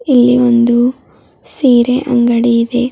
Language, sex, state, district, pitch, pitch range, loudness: Kannada, female, Karnataka, Bidar, 245 Hz, 240-250 Hz, -11 LUFS